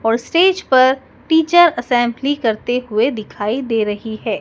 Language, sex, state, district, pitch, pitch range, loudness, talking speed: Hindi, male, Madhya Pradesh, Dhar, 245 Hz, 220-285 Hz, -16 LUFS, 150 wpm